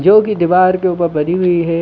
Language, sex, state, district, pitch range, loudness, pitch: Hindi, male, Chhattisgarh, Bilaspur, 170-185 Hz, -13 LUFS, 180 Hz